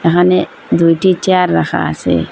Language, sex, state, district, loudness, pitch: Bengali, female, Assam, Hailakandi, -13 LUFS, 170 Hz